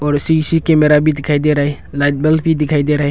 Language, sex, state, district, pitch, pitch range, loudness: Hindi, male, Arunachal Pradesh, Longding, 150 Hz, 145-155 Hz, -14 LUFS